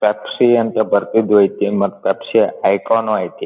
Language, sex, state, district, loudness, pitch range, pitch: Kannada, male, Karnataka, Dharwad, -16 LUFS, 100-115 Hz, 105 Hz